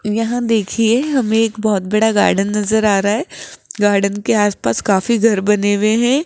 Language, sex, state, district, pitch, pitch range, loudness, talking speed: Hindi, female, Rajasthan, Jaipur, 215 Hz, 205-225 Hz, -15 LUFS, 180 wpm